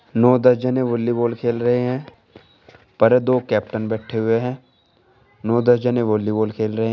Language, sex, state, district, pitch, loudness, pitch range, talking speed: Hindi, male, Uttar Pradesh, Shamli, 120 Hz, -19 LUFS, 110-125 Hz, 175 wpm